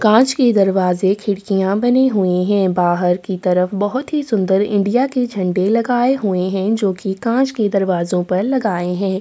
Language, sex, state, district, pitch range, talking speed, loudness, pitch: Hindi, female, Uttar Pradesh, Jalaun, 185-230 Hz, 175 wpm, -16 LUFS, 200 Hz